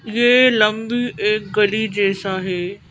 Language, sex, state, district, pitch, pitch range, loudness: Hindi, female, Madhya Pradesh, Bhopal, 210 Hz, 195-225 Hz, -17 LUFS